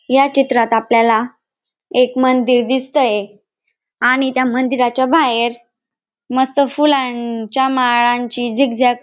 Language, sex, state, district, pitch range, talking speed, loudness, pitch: Marathi, female, Maharashtra, Dhule, 235-260 Hz, 100 wpm, -15 LUFS, 250 Hz